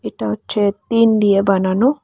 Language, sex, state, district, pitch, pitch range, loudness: Bengali, female, Tripura, West Tripura, 205 Hz, 195-230 Hz, -16 LUFS